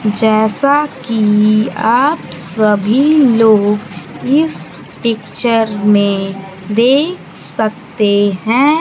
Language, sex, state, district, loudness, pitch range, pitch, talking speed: Hindi, male, Bihar, Kaimur, -13 LUFS, 205-245 Hz, 215 Hz, 75 wpm